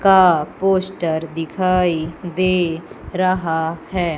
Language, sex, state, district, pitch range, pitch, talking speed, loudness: Hindi, female, Madhya Pradesh, Umaria, 165-185 Hz, 175 Hz, 85 wpm, -19 LUFS